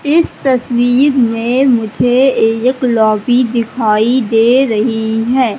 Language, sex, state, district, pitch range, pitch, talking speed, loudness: Hindi, female, Madhya Pradesh, Katni, 225-255 Hz, 245 Hz, 105 wpm, -12 LUFS